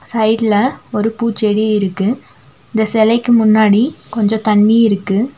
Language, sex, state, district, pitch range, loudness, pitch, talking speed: Tamil, female, Tamil Nadu, Nilgiris, 210-230 Hz, -14 LUFS, 220 Hz, 110 wpm